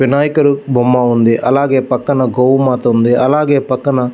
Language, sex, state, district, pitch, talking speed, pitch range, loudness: Telugu, male, Andhra Pradesh, Visakhapatnam, 130 Hz, 160 wpm, 125-140 Hz, -12 LUFS